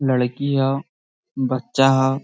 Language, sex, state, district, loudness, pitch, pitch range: Hindi, male, Jharkhand, Sahebganj, -20 LUFS, 135 Hz, 130-135 Hz